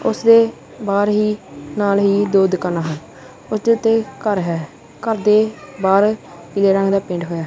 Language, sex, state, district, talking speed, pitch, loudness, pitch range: Punjabi, male, Punjab, Kapurthala, 160 wpm, 200 Hz, -17 LUFS, 175-215 Hz